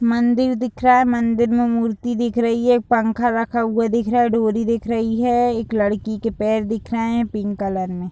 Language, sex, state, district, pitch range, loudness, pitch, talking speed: Hindi, female, Uttar Pradesh, Deoria, 220-240 Hz, -19 LUFS, 230 Hz, 220 wpm